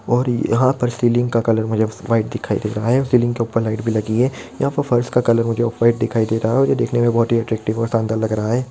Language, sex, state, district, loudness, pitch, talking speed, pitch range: Hindi, male, Chhattisgarh, Bilaspur, -18 LUFS, 115 Hz, 305 wpm, 110-120 Hz